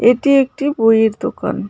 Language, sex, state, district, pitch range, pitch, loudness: Bengali, female, West Bengal, Cooch Behar, 225-280 Hz, 245 Hz, -15 LUFS